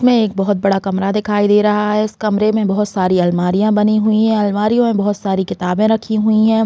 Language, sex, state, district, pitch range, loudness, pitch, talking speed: Hindi, female, Chhattisgarh, Raigarh, 195-215 Hz, -15 LUFS, 210 Hz, 245 wpm